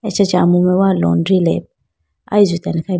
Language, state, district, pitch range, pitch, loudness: Idu Mishmi, Arunachal Pradesh, Lower Dibang Valley, 130-190 Hz, 180 Hz, -15 LUFS